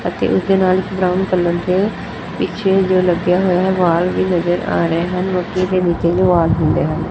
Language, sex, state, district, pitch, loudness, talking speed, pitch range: Punjabi, female, Punjab, Fazilka, 180 Hz, -16 LUFS, 200 wpm, 175-185 Hz